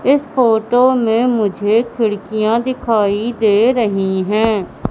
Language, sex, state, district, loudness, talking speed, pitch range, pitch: Hindi, female, Madhya Pradesh, Katni, -15 LUFS, 110 wpm, 210-240 Hz, 225 Hz